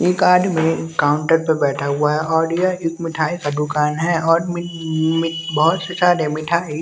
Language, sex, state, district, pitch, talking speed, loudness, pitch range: Hindi, male, Bihar, West Champaran, 165 Hz, 185 wpm, -18 LUFS, 155-170 Hz